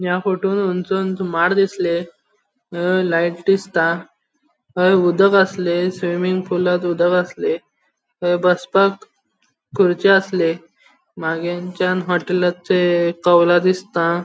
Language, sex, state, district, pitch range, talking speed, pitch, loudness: Konkani, male, Goa, North and South Goa, 175-190 Hz, 95 wpm, 180 Hz, -18 LUFS